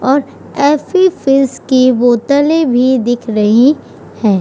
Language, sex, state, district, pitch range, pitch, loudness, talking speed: Hindi, female, Uttar Pradesh, Budaun, 245-285 Hz, 260 Hz, -11 LUFS, 125 wpm